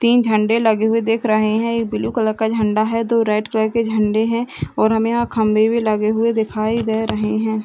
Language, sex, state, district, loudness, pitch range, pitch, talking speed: Hindi, female, Bihar, Madhepura, -18 LUFS, 215-230 Hz, 220 Hz, 235 wpm